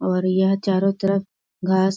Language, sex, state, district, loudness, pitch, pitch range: Hindi, female, Bihar, East Champaran, -21 LUFS, 190 Hz, 190-195 Hz